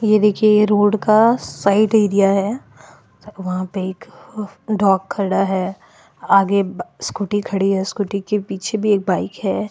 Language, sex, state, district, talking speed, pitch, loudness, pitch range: Hindi, female, Goa, North and South Goa, 160 wpm, 200 Hz, -18 LUFS, 195-210 Hz